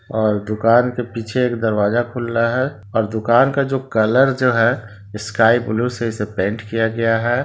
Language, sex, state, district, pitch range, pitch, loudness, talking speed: Hindi, male, Bihar, Sitamarhi, 110-120 Hz, 115 Hz, -18 LUFS, 175 wpm